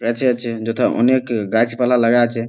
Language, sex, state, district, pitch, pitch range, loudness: Bengali, male, West Bengal, Malda, 120 Hz, 115-125 Hz, -17 LUFS